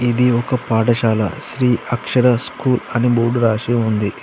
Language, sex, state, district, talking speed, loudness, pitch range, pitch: Telugu, male, Andhra Pradesh, Srikakulam, 140 wpm, -17 LUFS, 115-125 Hz, 120 Hz